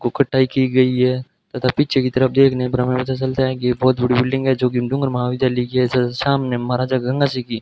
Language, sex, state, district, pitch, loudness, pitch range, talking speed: Hindi, male, Rajasthan, Bikaner, 130 Hz, -18 LUFS, 125-130 Hz, 230 wpm